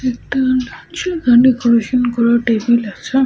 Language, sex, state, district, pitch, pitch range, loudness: Bengali, female, Jharkhand, Sahebganj, 245 Hz, 235-260 Hz, -15 LUFS